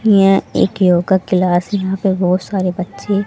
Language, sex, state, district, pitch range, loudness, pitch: Hindi, female, Haryana, Jhajjar, 180-200 Hz, -15 LUFS, 190 Hz